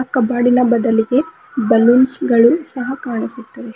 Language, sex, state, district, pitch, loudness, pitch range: Kannada, female, Karnataka, Bidar, 245 Hz, -15 LUFS, 230-260 Hz